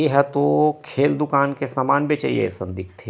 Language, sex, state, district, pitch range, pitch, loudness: Chhattisgarhi, male, Chhattisgarh, Rajnandgaon, 130-150 Hz, 140 Hz, -20 LUFS